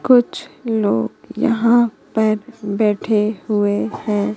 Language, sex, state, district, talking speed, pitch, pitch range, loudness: Hindi, female, Madhya Pradesh, Katni, 95 wpm, 215 Hz, 205-230 Hz, -18 LUFS